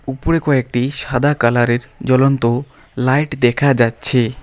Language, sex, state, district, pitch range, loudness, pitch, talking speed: Bengali, male, West Bengal, Alipurduar, 120-140 Hz, -16 LUFS, 130 Hz, 110 wpm